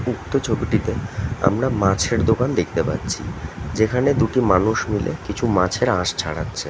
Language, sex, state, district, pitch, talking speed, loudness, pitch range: Bengali, male, West Bengal, North 24 Parganas, 110 Hz, 145 wpm, -21 LUFS, 100-125 Hz